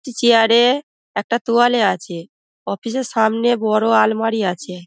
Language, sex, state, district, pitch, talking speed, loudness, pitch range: Bengali, female, West Bengal, Dakshin Dinajpur, 225 Hz, 135 wpm, -17 LUFS, 205-240 Hz